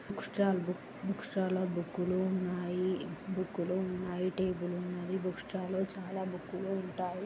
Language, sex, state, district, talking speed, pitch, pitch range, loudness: Telugu, female, Andhra Pradesh, Srikakulam, 165 wpm, 185 Hz, 180-190 Hz, -36 LUFS